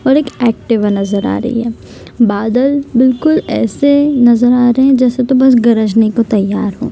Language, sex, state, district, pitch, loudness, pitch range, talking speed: Hindi, female, Bihar, Gopalganj, 240 Hz, -11 LUFS, 225-260 Hz, 175 wpm